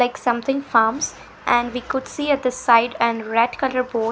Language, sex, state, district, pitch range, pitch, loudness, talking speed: English, female, Punjab, Fazilka, 235-265 Hz, 245 Hz, -20 LUFS, 205 wpm